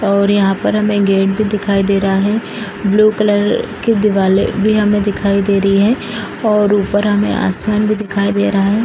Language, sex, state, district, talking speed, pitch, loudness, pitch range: Hindi, female, Bihar, East Champaran, 195 wpm, 205 Hz, -14 LUFS, 200-210 Hz